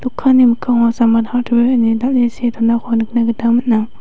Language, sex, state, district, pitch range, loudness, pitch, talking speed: Garo, female, Meghalaya, West Garo Hills, 230-245 Hz, -14 LUFS, 235 Hz, 165 wpm